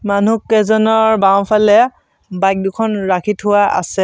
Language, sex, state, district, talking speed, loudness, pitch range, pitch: Assamese, male, Assam, Sonitpur, 105 wpm, -13 LUFS, 195-220 Hz, 210 Hz